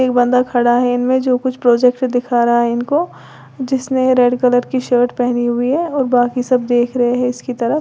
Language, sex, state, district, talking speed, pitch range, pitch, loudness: Hindi, female, Uttar Pradesh, Lalitpur, 205 wpm, 245-255 Hz, 250 Hz, -15 LUFS